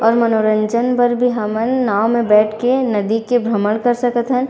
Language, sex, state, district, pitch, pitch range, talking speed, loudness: Chhattisgarhi, female, Chhattisgarh, Raigarh, 235 Hz, 215-245 Hz, 200 wpm, -16 LUFS